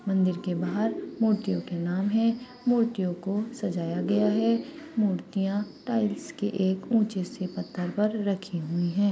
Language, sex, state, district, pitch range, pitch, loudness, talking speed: Hindi, female, Maharashtra, Pune, 185-225 Hz, 200 Hz, -28 LUFS, 150 wpm